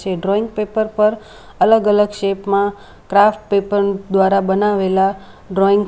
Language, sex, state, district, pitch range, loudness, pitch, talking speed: Gujarati, female, Gujarat, Valsad, 195-210 Hz, -16 LUFS, 200 Hz, 145 wpm